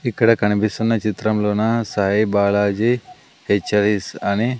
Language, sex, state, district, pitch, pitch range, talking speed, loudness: Telugu, male, Andhra Pradesh, Sri Satya Sai, 105 Hz, 100-115 Hz, 90 wpm, -19 LUFS